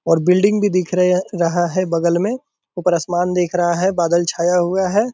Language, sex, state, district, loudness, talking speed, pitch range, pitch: Hindi, male, Bihar, Purnia, -17 LUFS, 210 wpm, 175-190 Hz, 180 Hz